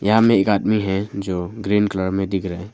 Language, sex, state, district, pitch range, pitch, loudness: Hindi, male, Arunachal Pradesh, Longding, 95-105 Hz, 100 Hz, -20 LUFS